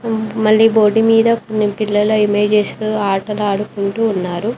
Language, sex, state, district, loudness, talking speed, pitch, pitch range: Telugu, female, Telangana, Mahabubabad, -15 LUFS, 130 wpm, 215 Hz, 205-220 Hz